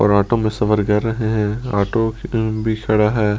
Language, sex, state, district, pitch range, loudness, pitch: Hindi, male, Delhi, New Delhi, 105-110 Hz, -18 LUFS, 110 Hz